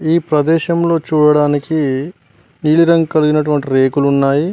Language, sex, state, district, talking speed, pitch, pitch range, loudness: Telugu, male, Telangana, Mahabubabad, 95 wpm, 150 Hz, 140-165 Hz, -14 LUFS